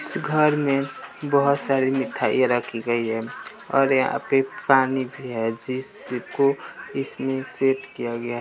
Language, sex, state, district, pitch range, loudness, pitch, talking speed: Hindi, male, Bihar, West Champaran, 120-135 Hz, -23 LUFS, 135 Hz, 145 wpm